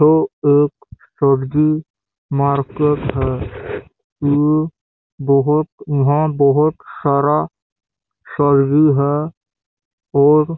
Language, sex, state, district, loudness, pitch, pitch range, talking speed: Hindi, male, Chhattisgarh, Bastar, -16 LUFS, 145 Hz, 140-150 Hz, 75 wpm